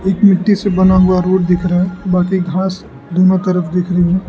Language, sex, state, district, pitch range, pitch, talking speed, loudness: Hindi, male, Arunachal Pradesh, Lower Dibang Valley, 180-190 Hz, 185 Hz, 225 wpm, -13 LUFS